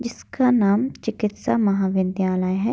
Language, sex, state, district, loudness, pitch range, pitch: Hindi, female, Bihar, Begusarai, -21 LUFS, 190-235 Hz, 210 Hz